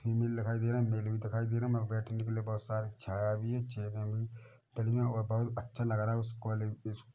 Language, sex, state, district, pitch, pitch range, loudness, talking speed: Hindi, male, Chhattisgarh, Bilaspur, 115 Hz, 110-115 Hz, -35 LUFS, 200 wpm